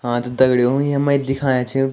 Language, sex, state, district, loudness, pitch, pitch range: Garhwali, male, Uttarakhand, Tehri Garhwal, -18 LUFS, 130 Hz, 125-140 Hz